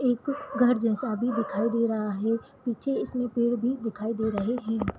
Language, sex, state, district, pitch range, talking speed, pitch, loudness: Hindi, female, Jharkhand, Sahebganj, 220-245 Hz, 190 wpm, 235 Hz, -28 LUFS